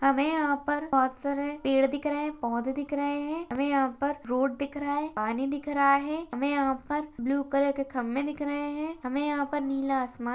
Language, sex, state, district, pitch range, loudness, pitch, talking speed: Hindi, female, Chhattisgarh, Balrampur, 270-290 Hz, -29 LUFS, 280 Hz, 225 wpm